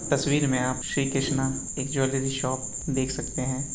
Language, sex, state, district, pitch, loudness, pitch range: Hindi, male, Bihar, Purnia, 135 Hz, -26 LUFS, 130-140 Hz